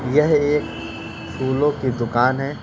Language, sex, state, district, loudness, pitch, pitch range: Hindi, male, Bihar, Gopalganj, -20 LUFS, 130 Hz, 110-145 Hz